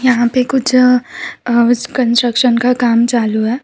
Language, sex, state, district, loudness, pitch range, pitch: Hindi, female, Gujarat, Valsad, -13 LUFS, 235-250 Hz, 245 Hz